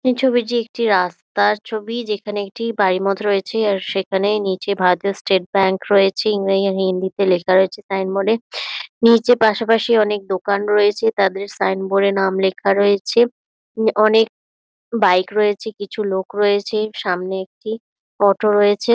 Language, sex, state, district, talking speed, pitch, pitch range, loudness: Bengali, female, West Bengal, Dakshin Dinajpur, 150 wpm, 205 Hz, 195-220 Hz, -18 LUFS